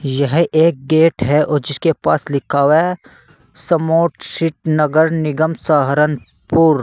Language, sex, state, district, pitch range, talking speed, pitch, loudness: Hindi, male, Uttar Pradesh, Saharanpur, 145-165 Hz, 130 wpm, 155 Hz, -15 LUFS